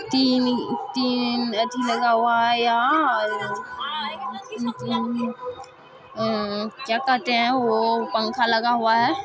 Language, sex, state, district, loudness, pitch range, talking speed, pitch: Maithili, female, Bihar, Supaul, -22 LUFS, 230-250 Hz, 95 wpm, 240 Hz